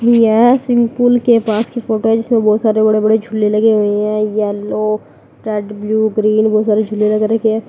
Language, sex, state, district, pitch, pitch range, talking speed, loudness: Hindi, female, Uttar Pradesh, Lalitpur, 220 Hz, 215-225 Hz, 205 wpm, -14 LUFS